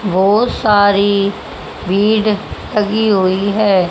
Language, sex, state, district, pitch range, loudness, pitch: Hindi, male, Haryana, Rohtak, 195-210 Hz, -14 LUFS, 205 Hz